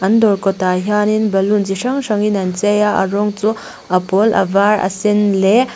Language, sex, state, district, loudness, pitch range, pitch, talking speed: Mizo, female, Mizoram, Aizawl, -15 LUFS, 195-210 Hz, 205 Hz, 220 wpm